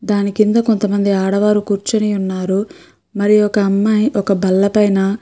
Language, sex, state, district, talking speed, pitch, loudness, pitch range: Telugu, female, Andhra Pradesh, Guntur, 140 wpm, 205 Hz, -15 LUFS, 195-210 Hz